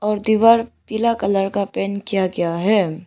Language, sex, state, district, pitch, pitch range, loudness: Hindi, female, Arunachal Pradesh, Lower Dibang Valley, 200 Hz, 195-220 Hz, -19 LUFS